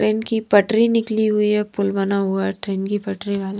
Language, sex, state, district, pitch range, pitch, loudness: Hindi, female, Himachal Pradesh, Shimla, 195-215 Hz, 205 Hz, -20 LUFS